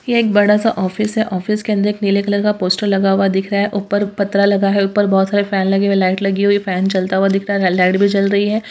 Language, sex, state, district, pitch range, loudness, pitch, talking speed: Hindi, female, Bihar, Purnia, 195-205 Hz, -15 LUFS, 200 Hz, 310 wpm